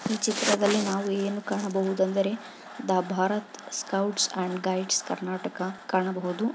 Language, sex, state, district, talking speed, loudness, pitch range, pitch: Kannada, female, Karnataka, Chamarajanagar, 110 wpm, -27 LUFS, 185-205 Hz, 195 Hz